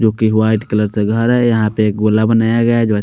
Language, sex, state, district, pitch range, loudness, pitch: Hindi, male, Chandigarh, Chandigarh, 105-115 Hz, -14 LUFS, 110 Hz